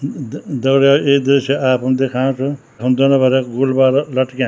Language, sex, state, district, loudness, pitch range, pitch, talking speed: Garhwali, male, Uttarakhand, Tehri Garhwal, -15 LUFS, 130-135 Hz, 135 Hz, 175 wpm